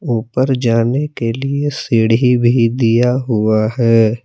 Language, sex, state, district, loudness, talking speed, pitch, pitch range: Hindi, male, Jharkhand, Palamu, -14 LUFS, 125 wpm, 120 Hz, 115-130 Hz